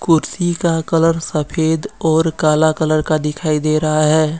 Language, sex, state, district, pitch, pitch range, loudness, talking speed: Hindi, male, Jharkhand, Deoghar, 160 Hz, 155-165 Hz, -16 LUFS, 165 wpm